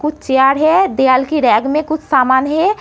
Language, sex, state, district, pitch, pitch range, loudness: Hindi, female, Uttar Pradesh, Etah, 290 Hz, 260-315 Hz, -13 LUFS